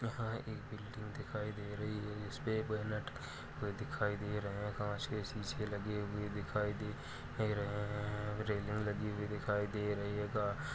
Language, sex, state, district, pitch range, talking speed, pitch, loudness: Hindi, male, Uttar Pradesh, Budaun, 105-110 Hz, 180 wpm, 105 Hz, -40 LUFS